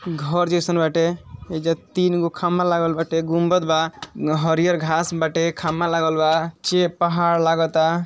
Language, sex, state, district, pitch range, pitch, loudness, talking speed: Bhojpuri, male, Uttar Pradesh, Ghazipur, 160-175 Hz, 165 Hz, -20 LUFS, 140 wpm